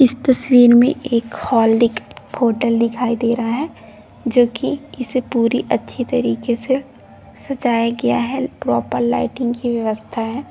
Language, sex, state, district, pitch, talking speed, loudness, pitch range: Hindi, female, Bihar, Begusarai, 240 Hz, 150 wpm, -17 LUFS, 230-255 Hz